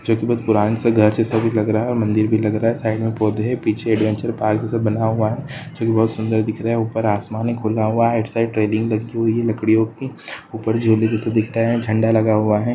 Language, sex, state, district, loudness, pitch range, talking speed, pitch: Hindi, male, Chhattisgarh, Kabirdham, -19 LUFS, 110-115 Hz, 280 wpm, 110 Hz